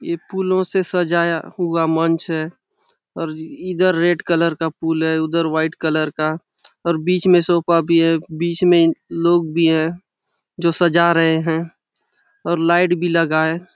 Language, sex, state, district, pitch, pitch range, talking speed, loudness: Hindi, male, Chhattisgarh, Bastar, 170 Hz, 160-175 Hz, 170 wpm, -18 LUFS